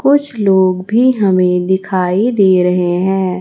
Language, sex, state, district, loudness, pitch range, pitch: Hindi, female, Chhattisgarh, Raipur, -13 LUFS, 185-210 Hz, 190 Hz